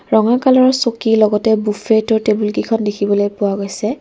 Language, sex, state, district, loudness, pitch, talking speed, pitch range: Assamese, female, Assam, Kamrup Metropolitan, -15 LUFS, 220 Hz, 150 wpm, 205-225 Hz